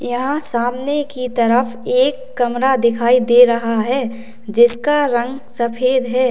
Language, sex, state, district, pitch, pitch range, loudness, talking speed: Hindi, female, Uttar Pradesh, Lalitpur, 245 Hz, 235-260 Hz, -16 LUFS, 135 wpm